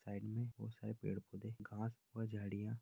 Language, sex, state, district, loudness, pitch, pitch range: Hindi, male, Uttar Pradesh, Jalaun, -47 LUFS, 110 Hz, 100-115 Hz